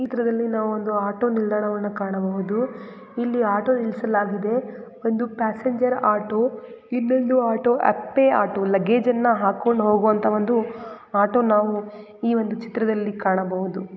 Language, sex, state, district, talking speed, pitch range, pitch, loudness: Kannada, female, Karnataka, Raichur, 115 wpm, 210-240 Hz, 220 Hz, -22 LUFS